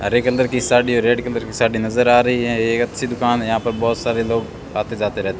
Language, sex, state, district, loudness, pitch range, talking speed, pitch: Hindi, male, Rajasthan, Bikaner, -18 LUFS, 115-120 Hz, 275 wpm, 120 Hz